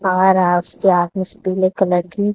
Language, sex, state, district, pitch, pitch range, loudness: Hindi, female, Haryana, Charkhi Dadri, 185 Hz, 180-190 Hz, -17 LUFS